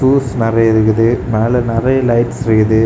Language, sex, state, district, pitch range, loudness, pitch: Tamil, male, Tamil Nadu, Kanyakumari, 110-125 Hz, -13 LUFS, 115 Hz